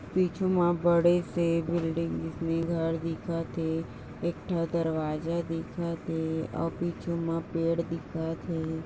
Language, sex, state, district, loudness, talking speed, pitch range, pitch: Hindi, female, Maharashtra, Nagpur, -30 LUFS, 130 wpm, 165-170 Hz, 165 Hz